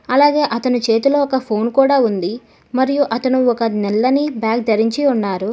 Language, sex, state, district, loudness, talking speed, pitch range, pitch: Telugu, female, Telangana, Hyderabad, -16 LUFS, 150 wpm, 225-275 Hz, 245 Hz